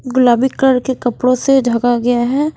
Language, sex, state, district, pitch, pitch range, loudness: Hindi, female, Punjab, Pathankot, 255 Hz, 245-265 Hz, -14 LUFS